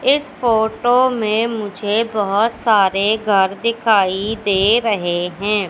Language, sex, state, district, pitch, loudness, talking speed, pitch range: Hindi, female, Madhya Pradesh, Katni, 215 Hz, -17 LUFS, 115 wpm, 200-230 Hz